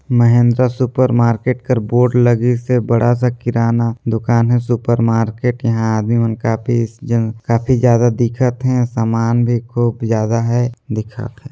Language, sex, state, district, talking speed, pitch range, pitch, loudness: Hindi, male, Chhattisgarh, Sarguja, 155 wpm, 115-125 Hz, 120 Hz, -15 LUFS